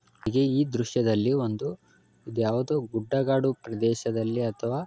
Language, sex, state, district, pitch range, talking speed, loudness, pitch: Kannada, male, Karnataka, Belgaum, 115-135 Hz, 85 wpm, -27 LUFS, 120 Hz